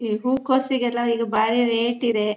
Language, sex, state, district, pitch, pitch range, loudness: Kannada, female, Karnataka, Shimoga, 235 Hz, 225-250 Hz, -21 LUFS